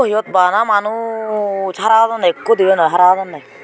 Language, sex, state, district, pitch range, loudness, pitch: Chakma, female, Tripura, Unakoti, 190-225 Hz, -14 LUFS, 210 Hz